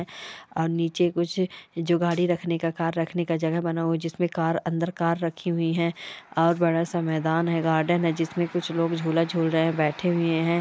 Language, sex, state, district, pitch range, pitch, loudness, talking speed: Hindi, female, Chhattisgarh, Raigarh, 165-170 Hz, 170 Hz, -25 LUFS, 210 wpm